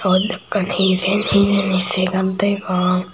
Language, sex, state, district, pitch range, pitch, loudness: Chakma, male, Tripura, Unakoti, 185-200 Hz, 190 Hz, -17 LUFS